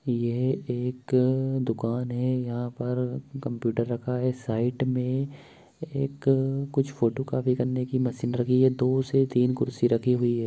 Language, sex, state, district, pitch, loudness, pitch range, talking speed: Bhojpuri, male, Bihar, Saran, 125 Hz, -27 LUFS, 120-130 Hz, 135 wpm